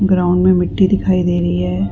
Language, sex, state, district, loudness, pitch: Hindi, female, Chhattisgarh, Rajnandgaon, -15 LUFS, 180 Hz